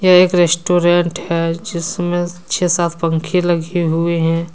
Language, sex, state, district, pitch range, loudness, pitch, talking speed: Hindi, male, Jharkhand, Deoghar, 170-175 Hz, -16 LUFS, 175 Hz, 145 wpm